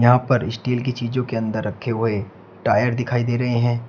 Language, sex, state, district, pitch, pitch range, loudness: Hindi, male, Uttar Pradesh, Shamli, 120 Hz, 115-125 Hz, -21 LUFS